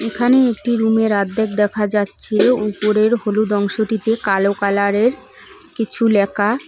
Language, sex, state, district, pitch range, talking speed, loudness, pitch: Bengali, female, West Bengal, Cooch Behar, 205-230 Hz, 125 wpm, -17 LUFS, 215 Hz